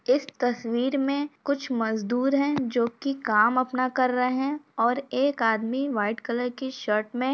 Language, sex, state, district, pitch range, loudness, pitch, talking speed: Hindi, female, Bihar, Samastipur, 235-275 Hz, -26 LUFS, 255 Hz, 180 wpm